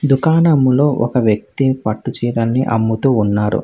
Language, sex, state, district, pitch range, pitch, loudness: Telugu, male, Telangana, Hyderabad, 110-135 Hz, 125 Hz, -15 LUFS